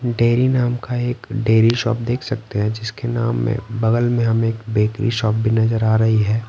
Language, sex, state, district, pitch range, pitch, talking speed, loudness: Hindi, male, Bihar, Patna, 110-120 Hz, 115 Hz, 215 wpm, -19 LUFS